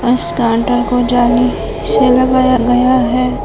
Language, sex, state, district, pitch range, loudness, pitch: Hindi, female, Jharkhand, Palamu, 245-255 Hz, -12 LUFS, 245 Hz